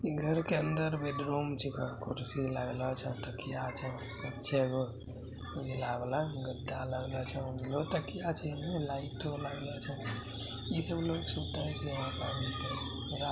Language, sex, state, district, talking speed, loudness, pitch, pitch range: Hindi, male, Bihar, Bhagalpur, 35 wpm, -36 LUFS, 130 Hz, 125-145 Hz